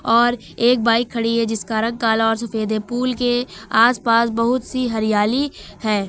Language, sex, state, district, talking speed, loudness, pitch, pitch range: Hindi, female, Uttar Pradesh, Lucknow, 185 wpm, -19 LUFS, 230 Hz, 220-240 Hz